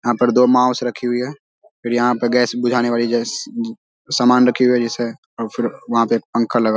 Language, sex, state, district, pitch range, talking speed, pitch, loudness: Hindi, male, Bihar, Samastipur, 120-125 Hz, 230 wpm, 120 Hz, -18 LUFS